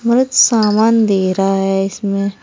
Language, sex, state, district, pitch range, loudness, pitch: Hindi, female, Uttar Pradesh, Saharanpur, 195-225 Hz, -14 LUFS, 200 Hz